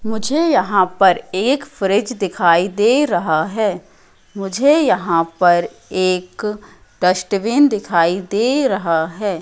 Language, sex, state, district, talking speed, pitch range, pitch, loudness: Hindi, female, Madhya Pradesh, Katni, 115 wpm, 180-220 Hz, 195 Hz, -16 LUFS